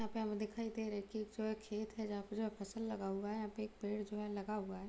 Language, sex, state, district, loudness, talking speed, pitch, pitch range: Hindi, female, Bihar, Muzaffarpur, -43 LUFS, 345 wpm, 215 Hz, 205-220 Hz